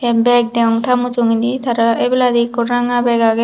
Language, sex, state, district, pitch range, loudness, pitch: Chakma, female, Tripura, Dhalai, 230-245 Hz, -15 LUFS, 240 Hz